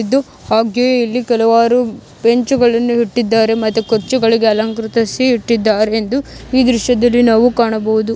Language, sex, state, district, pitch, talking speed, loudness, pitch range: Kannada, female, Karnataka, Mysore, 230 Hz, 120 wpm, -14 LUFS, 225-245 Hz